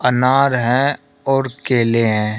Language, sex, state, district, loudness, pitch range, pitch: Hindi, male, Uttar Pradesh, Shamli, -16 LUFS, 115-135 Hz, 125 Hz